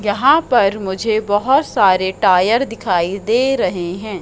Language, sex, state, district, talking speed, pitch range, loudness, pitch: Hindi, female, Madhya Pradesh, Katni, 140 wpm, 190-240 Hz, -15 LUFS, 205 Hz